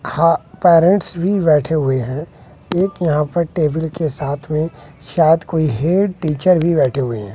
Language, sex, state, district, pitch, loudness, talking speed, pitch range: Hindi, male, Bihar, West Champaran, 160 Hz, -16 LUFS, 170 wpm, 145-170 Hz